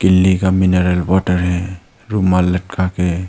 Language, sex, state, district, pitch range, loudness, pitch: Hindi, male, Arunachal Pradesh, Longding, 90-95 Hz, -15 LUFS, 90 Hz